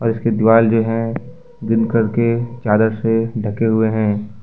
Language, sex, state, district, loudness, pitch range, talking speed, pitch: Hindi, male, Jharkhand, Ranchi, -17 LUFS, 110-115 Hz, 160 wpm, 115 Hz